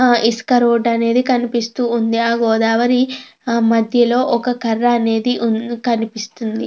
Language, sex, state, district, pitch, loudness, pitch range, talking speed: Telugu, female, Andhra Pradesh, Krishna, 235 Hz, -16 LUFS, 230-245 Hz, 115 wpm